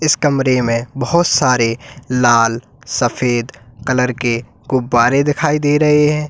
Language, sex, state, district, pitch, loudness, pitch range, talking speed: Hindi, male, Uttar Pradesh, Lalitpur, 125 Hz, -15 LUFS, 120-145 Hz, 135 wpm